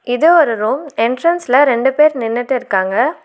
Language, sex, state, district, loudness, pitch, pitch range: Tamil, female, Tamil Nadu, Nilgiris, -14 LUFS, 260 Hz, 235-305 Hz